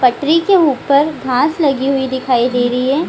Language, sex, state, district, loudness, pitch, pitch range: Hindi, female, Bihar, Gaya, -14 LUFS, 275 Hz, 255-305 Hz